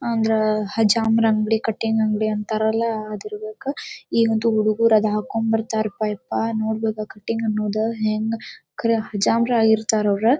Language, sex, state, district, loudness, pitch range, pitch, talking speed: Kannada, female, Karnataka, Dharwad, -21 LUFS, 215-225 Hz, 220 Hz, 120 wpm